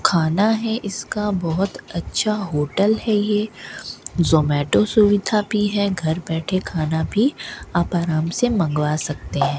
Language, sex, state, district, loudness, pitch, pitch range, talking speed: Hindi, female, Rajasthan, Bikaner, -20 LUFS, 185 Hz, 160-210 Hz, 140 wpm